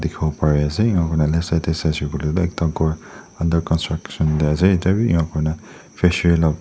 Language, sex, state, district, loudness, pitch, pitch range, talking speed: Nagamese, male, Nagaland, Dimapur, -19 LUFS, 80 Hz, 75-90 Hz, 190 wpm